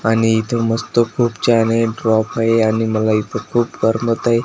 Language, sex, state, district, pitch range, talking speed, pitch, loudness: Marathi, male, Maharashtra, Washim, 110-115 Hz, 190 wpm, 115 Hz, -17 LUFS